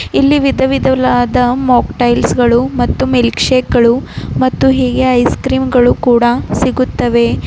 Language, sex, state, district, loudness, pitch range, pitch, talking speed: Kannada, female, Karnataka, Bidar, -12 LUFS, 245-265 Hz, 250 Hz, 120 wpm